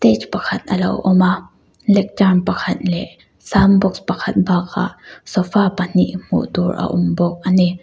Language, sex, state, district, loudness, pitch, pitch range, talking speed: Mizo, female, Mizoram, Aizawl, -17 LUFS, 185 Hz, 180-195 Hz, 155 wpm